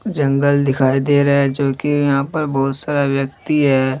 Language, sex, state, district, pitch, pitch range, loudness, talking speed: Hindi, male, Jharkhand, Deoghar, 140 Hz, 135-145 Hz, -16 LUFS, 195 wpm